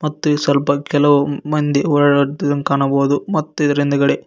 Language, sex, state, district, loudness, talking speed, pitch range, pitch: Kannada, male, Karnataka, Koppal, -16 LUFS, 155 wpm, 140-150 Hz, 145 Hz